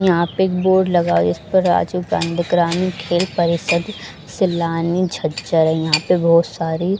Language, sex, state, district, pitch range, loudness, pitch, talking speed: Hindi, female, Haryana, Jhajjar, 165-185 Hz, -17 LUFS, 170 Hz, 180 wpm